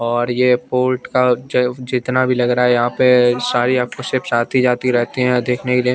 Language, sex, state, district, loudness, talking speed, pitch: Hindi, male, Chandigarh, Chandigarh, -16 LUFS, 220 wpm, 125 Hz